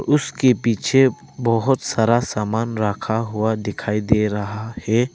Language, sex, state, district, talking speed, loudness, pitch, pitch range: Hindi, male, Arunachal Pradesh, Lower Dibang Valley, 130 wpm, -20 LUFS, 115 Hz, 105-125 Hz